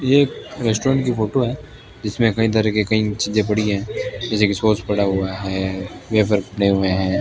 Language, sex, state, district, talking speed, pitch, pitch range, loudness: Hindi, male, Rajasthan, Bikaner, 200 wpm, 105 Hz, 100-115 Hz, -20 LUFS